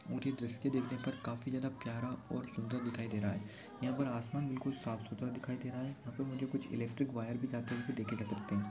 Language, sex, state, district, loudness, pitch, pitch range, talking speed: Hindi, male, Chhattisgarh, Kabirdham, -40 LUFS, 125 Hz, 115-130 Hz, 250 wpm